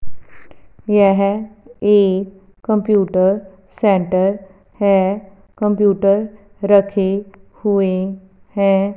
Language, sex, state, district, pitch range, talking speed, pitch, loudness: Hindi, female, Punjab, Fazilka, 195-205 Hz, 60 wpm, 195 Hz, -16 LUFS